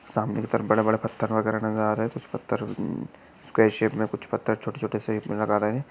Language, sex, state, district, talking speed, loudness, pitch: Hindi, male, Maharashtra, Chandrapur, 245 wpm, -26 LUFS, 110 Hz